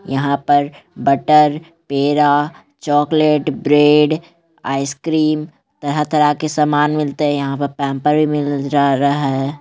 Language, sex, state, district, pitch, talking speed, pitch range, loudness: Magahi, male, Bihar, Gaya, 150 Hz, 130 wpm, 140-150 Hz, -16 LUFS